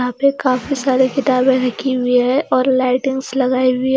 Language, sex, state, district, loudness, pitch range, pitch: Hindi, female, Chandigarh, Chandigarh, -16 LUFS, 255-265 Hz, 260 Hz